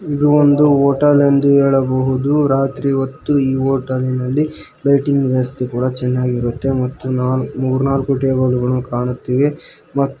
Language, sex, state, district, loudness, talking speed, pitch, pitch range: Kannada, male, Karnataka, Koppal, -16 LUFS, 130 wpm, 135 Hz, 130-140 Hz